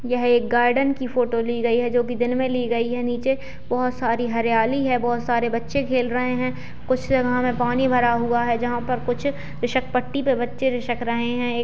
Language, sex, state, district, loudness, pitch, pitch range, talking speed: Hindi, female, Bihar, Jahanabad, -22 LUFS, 245 Hz, 240-250 Hz, 235 wpm